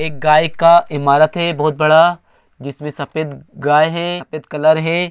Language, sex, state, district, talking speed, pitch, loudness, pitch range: Hindi, male, Andhra Pradesh, Chittoor, 150 wpm, 155 Hz, -14 LUFS, 150-170 Hz